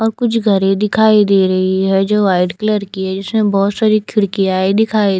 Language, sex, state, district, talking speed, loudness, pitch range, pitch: Hindi, female, Chandigarh, Chandigarh, 210 wpm, -14 LUFS, 190-215 Hz, 200 Hz